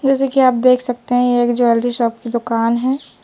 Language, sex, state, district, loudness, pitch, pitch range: Hindi, female, Madhya Pradesh, Bhopal, -16 LUFS, 245 Hz, 235-255 Hz